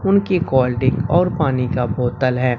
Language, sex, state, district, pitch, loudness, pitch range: Hindi, male, Bihar, Katihar, 130 Hz, -18 LUFS, 125-170 Hz